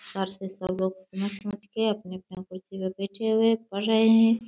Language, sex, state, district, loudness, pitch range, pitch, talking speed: Hindi, female, Bihar, Begusarai, -27 LUFS, 190-220 Hz, 195 Hz, 185 wpm